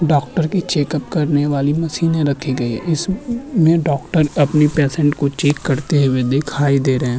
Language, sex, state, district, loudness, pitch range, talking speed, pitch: Hindi, male, Uttarakhand, Tehri Garhwal, -17 LUFS, 140-160 Hz, 160 wpm, 145 Hz